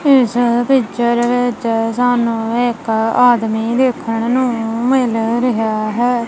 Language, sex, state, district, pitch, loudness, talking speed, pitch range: Punjabi, female, Punjab, Kapurthala, 235 Hz, -15 LUFS, 105 wpm, 225-245 Hz